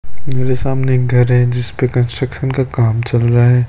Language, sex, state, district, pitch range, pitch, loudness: Hindi, male, Rajasthan, Bikaner, 120-130 Hz, 125 Hz, -15 LUFS